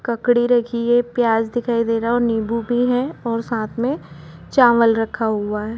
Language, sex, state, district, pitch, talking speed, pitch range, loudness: Hindi, female, Uttar Pradesh, Budaun, 235 Hz, 205 wpm, 225-240 Hz, -19 LUFS